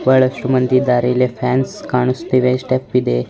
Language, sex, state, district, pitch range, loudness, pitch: Kannada, male, Karnataka, Dharwad, 125-130 Hz, -16 LUFS, 125 Hz